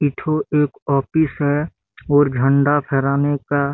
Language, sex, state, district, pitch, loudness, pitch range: Hindi, male, Chhattisgarh, Bastar, 145 Hz, -18 LUFS, 140-150 Hz